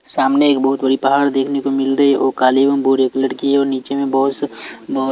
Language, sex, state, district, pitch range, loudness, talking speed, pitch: Hindi, male, Chhattisgarh, Raipur, 135-140 Hz, -16 LUFS, 260 wpm, 135 Hz